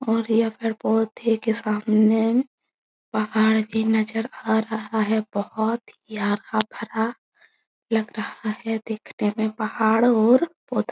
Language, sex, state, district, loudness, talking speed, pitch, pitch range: Hindi, female, Bihar, Araria, -23 LUFS, 130 wpm, 220 Hz, 215-230 Hz